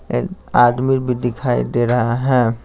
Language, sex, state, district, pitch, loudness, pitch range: Hindi, male, Bihar, Patna, 125 Hz, -17 LUFS, 120-125 Hz